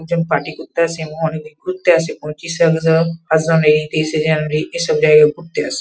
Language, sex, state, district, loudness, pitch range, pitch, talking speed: Bengali, female, West Bengal, Kolkata, -16 LUFS, 155-175 Hz, 165 Hz, 175 wpm